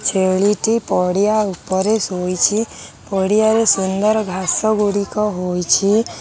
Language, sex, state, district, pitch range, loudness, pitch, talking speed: Odia, female, Odisha, Khordha, 185-215 Hz, -17 LUFS, 200 Hz, 85 wpm